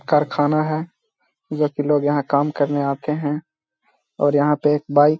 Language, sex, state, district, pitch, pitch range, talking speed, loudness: Hindi, male, Bihar, Gaya, 150 Hz, 145-155 Hz, 160 wpm, -20 LUFS